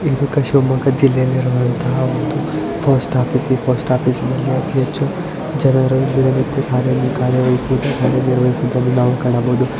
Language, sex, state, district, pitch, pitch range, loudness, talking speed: Kannada, male, Karnataka, Shimoga, 130 Hz, 125-135 Hz, -16 LUFS, 120 wpm